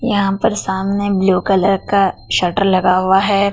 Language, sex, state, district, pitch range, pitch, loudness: Hindi, female, Madhya Pradesh, Dhar, 190-200 Hz, 195 Hz, -15 LUFS